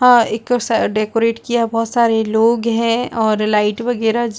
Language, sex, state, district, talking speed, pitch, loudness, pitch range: Hindi, female, Chhattisgarh, Balrampur, 180 wpm, 230 Hz, -16 LUFS, 220-235 Hz